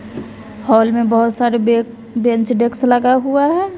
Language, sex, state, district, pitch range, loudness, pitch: Hindi, female, Bihar, West Champaran, 230-255 Hz, -15 LUFS, 235 Hz